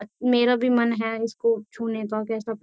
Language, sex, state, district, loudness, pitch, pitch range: Hindi, female, Uttar Pradesh, Jyotiba Phule Nagar, -24 LUFS, 225 Hz, 220-235 Hz